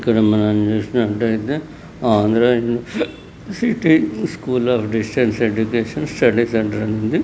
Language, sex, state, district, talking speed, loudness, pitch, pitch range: Telugu, male, Andhra Pradesh, Srikakulam, 90 wpm, -18 LUFS, 120 Hz, 110-130 Hz